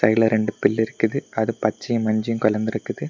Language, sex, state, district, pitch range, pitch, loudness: Tamil, male, Tamil Nadu, Kanyakumari, 110-115 Hz, 110 Hz, -22 LUFS